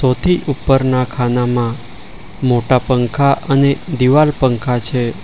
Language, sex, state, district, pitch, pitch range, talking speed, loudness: Gujarati, male, Gujarat, Valsad, 130 Hz, 120-140 Hz, 105 wpm, -15 LUFS